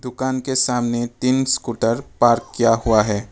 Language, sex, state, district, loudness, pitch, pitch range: Hindi, male, Arunachal Pradesh, Papum Pare, -19 LUFS, 120 Hz, 115-130 Hz